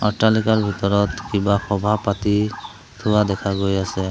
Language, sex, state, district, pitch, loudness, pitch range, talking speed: Assamese, male, Assam, Sonitpur, 100 Hz, -20 LUFS, 100-105 Hz, 130 wpm